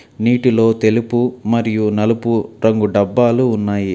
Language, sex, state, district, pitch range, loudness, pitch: Telugu, male, Telangana, Hyderabad, 110-120 Hz, -15 LUFS, 115 Hz